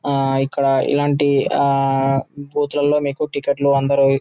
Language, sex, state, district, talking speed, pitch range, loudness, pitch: Telugu, male, Telangana, Nalgonda, 130 wpm, 135-145 Hz, -18 LUFS, 140 Hz